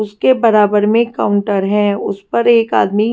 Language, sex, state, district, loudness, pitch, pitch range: Hindi, female, Delhi, New Delhi, -13 LUFS, 210 Hz, 205-230 Hz